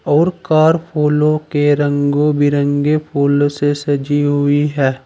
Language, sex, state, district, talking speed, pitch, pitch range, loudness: Hindi, male, Uttar Pradesh, Saharanpur, 130 wpm, 145 Hz, 145-150 Hz, -15 LUFS